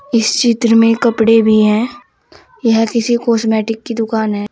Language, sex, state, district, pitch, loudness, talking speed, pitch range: Hindi, female, Uttar Pradesh, Saharanpur, 225 Hz, -13 LUFS, 160 wpm, 220-235 Hz